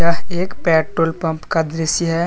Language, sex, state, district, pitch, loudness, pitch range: Hindi, male, Jharkhand, Deoghar, 165 Hz, -19 LUFS, 160-170 Hz